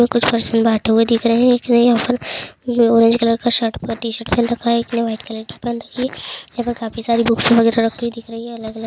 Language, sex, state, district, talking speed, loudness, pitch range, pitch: Hindi, female, Chhattisgarh, Raigarh, 135 wpm, -17 LUFS, 230-240 Hz, 230 Hz